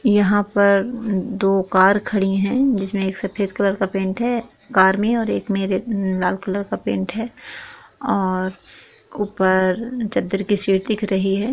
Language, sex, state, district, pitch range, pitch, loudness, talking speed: Hindi, female, Jharkhand, Sahebganj, 190-220 Hz, 200 Hz, -20 LUFS, 160 wpm